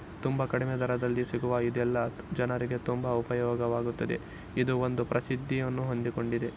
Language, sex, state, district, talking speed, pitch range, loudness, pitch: Kannada, male, Karnataka, Shimoga, 120 wpm, 120-125 Hz, -31 LUFS, 125 Hz